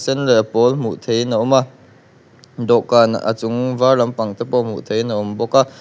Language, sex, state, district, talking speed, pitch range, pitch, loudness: Mizo, male, Mizoram, Aizawl, 225 wpm, 115-130 Hz, 120 Hz, -17 LUFS